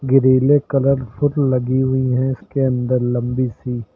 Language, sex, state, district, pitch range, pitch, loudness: Hindi, male, Uttar Pradesh, Lucknow, 125-135 Hz, 130 Hz, -18 LUFS